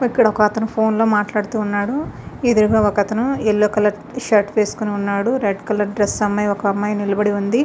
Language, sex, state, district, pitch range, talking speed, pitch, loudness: Telugu, female, Andhra Pradesh, Visakhapatnam, 205-220 Hz, 180 wpm, 210 Hz, -18 LUFS